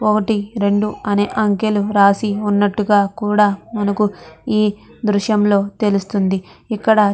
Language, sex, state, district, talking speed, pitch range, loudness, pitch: Telugu, female, Andhra Pradesh, Chittoor, 110 wpm, 200-215 Hz, -17 LUFS, 205 Hz